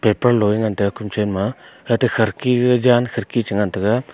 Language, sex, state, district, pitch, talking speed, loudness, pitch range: Wancho, male, Arunachal Pradesh, Longding, 110 Hz, 205 wpm, -18 LUFS, 105-125 Hz